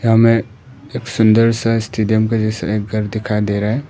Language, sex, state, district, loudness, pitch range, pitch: Hindi, male, Arunachal Pradesh, Papum Pare, -16 LUFS, 110-115 Hz, 110 Hz